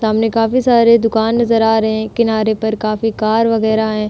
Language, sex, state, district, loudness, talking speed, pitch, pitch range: Hindi, female, Uttar Pradesh, Budaun, -14 LUFS, 205 wpm, 225 Hz, 220-230 Hz